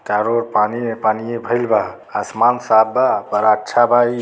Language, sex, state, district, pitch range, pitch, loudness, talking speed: Bhojpuri, male, Uttar Pradesh, Deoria, 110-120 Hz, 115 Hz, -17 LUFS, 200 wpm